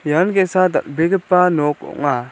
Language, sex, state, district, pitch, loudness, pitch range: Garo, male, Meghalaya, South Garo Hills, 180 Hz, -17 LUFS, 150-185 Hz